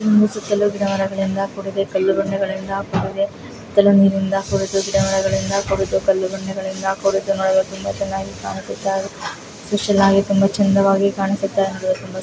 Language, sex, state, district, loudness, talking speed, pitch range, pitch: Kannada, female, Karnataka, Chamarajanagar, -19 LUFS, 125 wpm, 195-200 Hz, 195 Hz